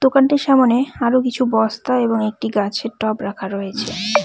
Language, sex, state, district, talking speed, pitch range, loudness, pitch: Bengali, female, West Bengal, Cooch Behar, 155 wpm, 215-255 Hz, -18 LUFS, 230 Hz